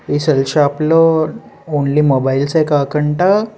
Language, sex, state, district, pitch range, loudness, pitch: Telugu, male, Andhra Pradesh, Srikakulam, 140-160 Hz, -14 LUFS, 150 Hz